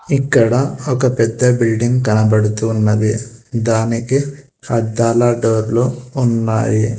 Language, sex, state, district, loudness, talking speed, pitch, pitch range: Telugu, male, Telangana, Hyderabad, -15 LUFS, 85 wpm, 115 Hz, 110-125 Hz